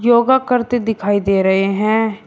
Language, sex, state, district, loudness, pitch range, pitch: Hindi, male, Uttar Pradesh, Shamli, -15 LUFS, 200-240 Hz, 220 Hz